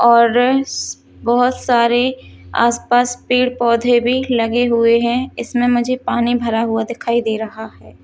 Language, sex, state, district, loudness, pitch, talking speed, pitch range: Hindi, female, Haryana, Charkhi Dadri, -16 LUFS, 235 Hz, 150 wpm, 230-245 Hz